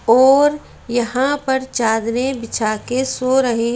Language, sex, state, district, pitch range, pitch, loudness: Hindi, female, Madhya Pradesh, Bhopal, 230-265 Hz, 255 Hz, -17 LUFS